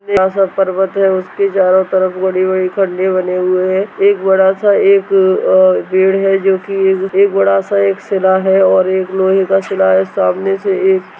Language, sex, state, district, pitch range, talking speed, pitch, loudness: Hindi, male, Bihar, Purnia, 185-195 Hz, 195 wpm, 190 Hz, -12 LUFS